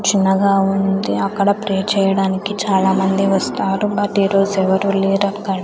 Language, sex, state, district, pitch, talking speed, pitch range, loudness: Telugu, female, Andhra Pradesh, Sri Satya Sai, 195 Hz, 115 wpm, 195-200 Hz, -17 LUFS